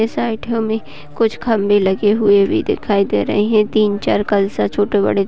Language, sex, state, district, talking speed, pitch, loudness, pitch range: Hindi, female, Uttar Pradesh, Gorakhpur, 180 wpm, 205 Hz, -16 LUFS, 200-220 Hz